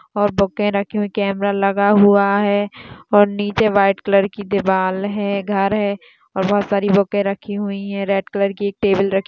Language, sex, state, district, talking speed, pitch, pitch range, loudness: Hindi, female, Maharashtra, Sindhudurg, 195 wpm, 200 Hz, 195-205 Hz, -18 LUFS